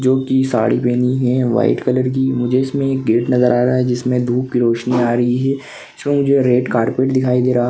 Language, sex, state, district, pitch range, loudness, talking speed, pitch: Hindi, male, Maharashtra, Nagpur, 125-130 Hz, -16 LUFS, 235 wpm, 125 Hz